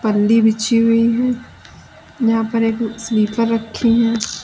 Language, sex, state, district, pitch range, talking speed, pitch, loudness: Hindi, female, Uttar Pradesh, Lalitpur, 225-230 Hz, 150 wpm, 230 Hz, -16 LUFS